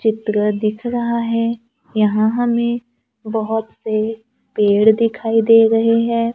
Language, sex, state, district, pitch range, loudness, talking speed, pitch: Hindi, female, Maharashtra, Gondia, 220-235 Hz, -17 LUFS, 125 wpm, 225 Hz